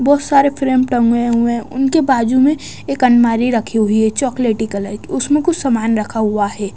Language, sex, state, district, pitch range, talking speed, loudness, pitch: Hindi, female, Odisha, Nuapada, 220-270 Hz, 205 wpm, -15 LUFS, 240 Hz